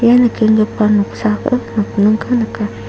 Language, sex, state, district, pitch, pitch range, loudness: Garo, female, Meghalaya, South Garo Hills, 220 Hz, 215-235 Hz, -14 LUFS